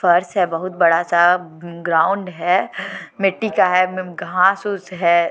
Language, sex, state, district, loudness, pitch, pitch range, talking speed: Hindi, female, Jharkhand, Deoghar, -18 LUFS, 180 Hz, 170-185 Hz, 145 wpm